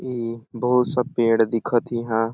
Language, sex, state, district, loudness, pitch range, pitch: Awadhi, male, Chhattisgarh, Balrampur, -22 LUFS, 115-125 Hz, 120 Hz